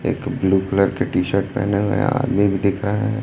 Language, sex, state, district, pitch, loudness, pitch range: Hindi, male, Chhattisgarh, Raipur, 100 Hz, -19 LUFS, 100-130 Hz